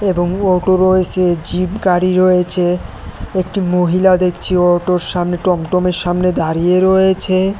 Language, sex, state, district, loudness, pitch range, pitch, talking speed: Bengali, male, Tripura, West Tripura, -14 LUFS, 180-185 Hz, 180 Hz, 120 wpm